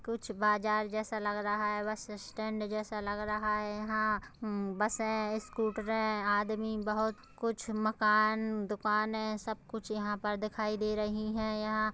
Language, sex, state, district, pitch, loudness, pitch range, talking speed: Hindi, female, Chhattisgarh, Kabirdham, 215 Hz, -34 LUFS, 210-220 Hz, 145 wpm